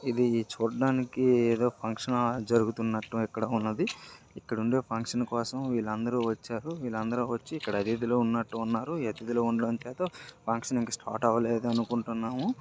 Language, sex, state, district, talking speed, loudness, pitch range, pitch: Telugu, male, Andhra Pradesh, Srikakulam, 135 wpm, -30 LUFS, 115-125 Hz, 115 Hz